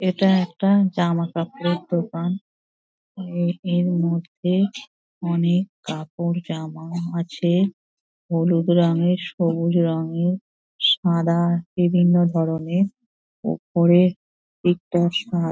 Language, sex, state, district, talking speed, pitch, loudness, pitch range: Bengali, female, West Bengal, Dakshin Dinajpur, 80 wpm, 175 Hz, -21 LUFS, 170-180 Hz